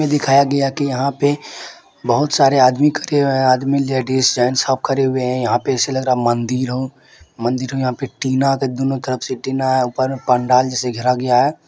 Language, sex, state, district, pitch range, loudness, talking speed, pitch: Maithili, male, Bihar, Supaul, 125-135 Hz, -17 LUFS, 230 wpm, 130 Hz